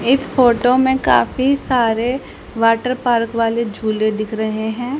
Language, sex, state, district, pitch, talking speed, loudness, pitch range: Hindi, female, Haryana, Charkhi Dadri, 235 Hz, 145 wpm, -17 LUFS, 225-255 Hz